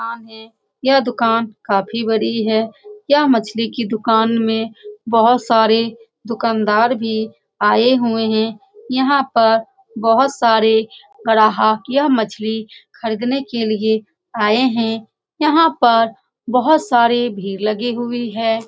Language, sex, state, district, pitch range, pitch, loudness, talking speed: Hindi, female, Bihar, Saran, 220-245 Hz, 230 Hz, -16 LUFS, 125 wpm